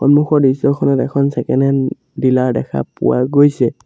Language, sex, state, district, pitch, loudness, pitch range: Assamese, male, Assam, Sonitpur, 135 Hz, -15 LUFS, 125-140 Hz